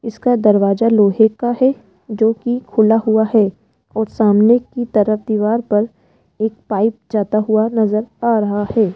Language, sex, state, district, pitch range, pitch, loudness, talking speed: Hindi, female, Rajasthan, Jaipur, 210-230 Hz, 220 Hz, -16 LUFS, 160 wpm